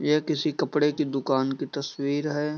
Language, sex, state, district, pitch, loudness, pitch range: Hindi, male, Bihar, East Champaran, 150 Hz, -26 LUFS, 140-150 Hz